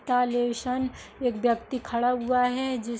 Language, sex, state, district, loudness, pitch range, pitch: Hindi, female, Uttar Pradesh, Hamirpur, -27 LUFS, 240-255 Hz, 250 Hz